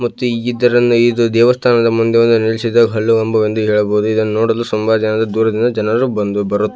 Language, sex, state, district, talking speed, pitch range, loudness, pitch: Kannada, male, Karnataka, Belgaum, 160 wpm, 110-120 Hz, -14 LUFS, 115 Hz